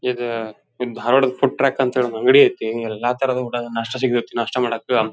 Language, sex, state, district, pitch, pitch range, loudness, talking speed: Kannada, male, Karnataka, Dharwad, 125 Hz, 115-130 Hz, -19 LUFS, 185 wpm